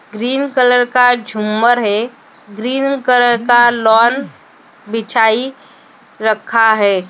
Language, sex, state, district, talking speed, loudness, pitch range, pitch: Marathi, female, Maharashtra, Sindhudurg, 100 wpm, -13 LUFS, 220-250 Hz, 235 Hz